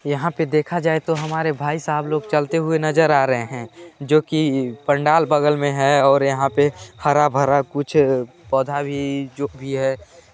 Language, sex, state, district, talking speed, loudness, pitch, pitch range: Hindi, male, Chhattisgarh, Balrampur, 185 wpm, -19 LUFS, 145 Hz, 135-155 Hz